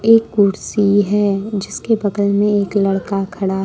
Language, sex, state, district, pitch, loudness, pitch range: Hindi, female, Jharkhand, Ranchi, 205 Hz, -16 LUFS, 195-210 Hz